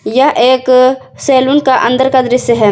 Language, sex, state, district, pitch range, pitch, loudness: Hindi, female, Jharkhand, Ranchi, 250-265 Hz, 255 Hz, -10 LUFS